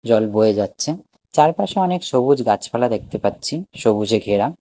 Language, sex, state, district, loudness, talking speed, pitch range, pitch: Bengali, male, Odisha, Nuapada, -19 LUFS, 145 wpm, 110-155 Hz, 125 Hz